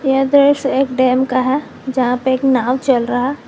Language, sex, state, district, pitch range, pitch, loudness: Hindi, female, Jharkhand, Garhwa, 255-270 Hz, 260 Hz, -15 LUFS